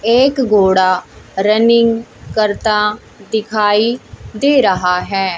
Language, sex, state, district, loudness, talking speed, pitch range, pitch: Hindi, female, Haryana, Jhajjar, -14 LUFS, 90 wpm, 195-230 Hz, 210 Hz